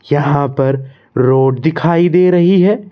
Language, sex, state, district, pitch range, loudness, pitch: Hindi, male, Madhya Pradesh, Bhopal, 135-175 Hz, -12 LUFS, 145 Hz